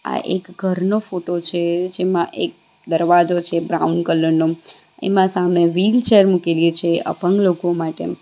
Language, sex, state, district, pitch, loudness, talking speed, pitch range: Gujarati, female, Gujarat, Valsad, 175 Hz, -18 LUFS, 145 wpm, 170-185 Hz